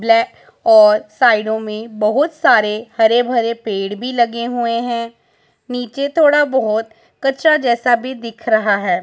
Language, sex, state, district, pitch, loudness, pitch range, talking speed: Hindi, male, Punjab, Pathankot, 235 Hz, -15 LUFS, 220-260 Hz, 140 wpm